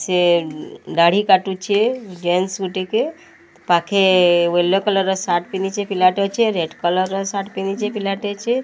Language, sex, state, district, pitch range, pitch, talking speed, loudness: Odia, female, Odisha, Sambalpur, 180-200 Hz, 190 Hz, 125 wpm, -18 LUFS